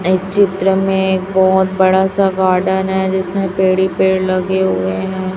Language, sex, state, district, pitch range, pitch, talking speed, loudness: Hindi, male, Chhattisgarh, Raipur, 185-190 Hz, 190 Hz, 165 wpm, -14 LUFS